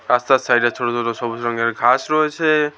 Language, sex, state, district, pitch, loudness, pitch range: Bengali, male, West Bengal, Alipurduar, 120 Hz, -18 LUFS, 120-150 Hz